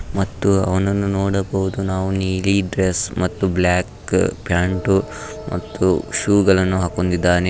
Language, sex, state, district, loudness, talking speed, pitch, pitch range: Kannada, male, Karnataka, Raichur, -19 LUFS, 95 wpm, 95 Hz, 90-100 Hz